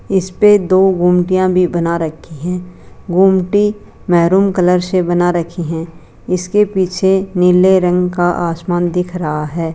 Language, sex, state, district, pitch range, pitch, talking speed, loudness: Hindi, female, Rajasthan, Jaipur, 175-190 Hz, 180 Hz, 150 wpm, -14 LUFS